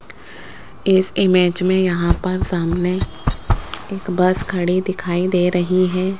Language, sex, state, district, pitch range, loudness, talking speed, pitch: Hindi, female, Rajasthan, Jaipur, 180-185 Hz, -18 LUFS, 125 wpm, 185 Hz